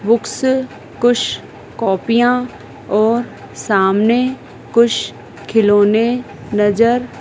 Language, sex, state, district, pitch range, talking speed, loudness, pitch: Hindi, female, Madhya Pradesh, Dhar, 210-245 Hz, 65 wpm, -15 LUFS, 230 Hz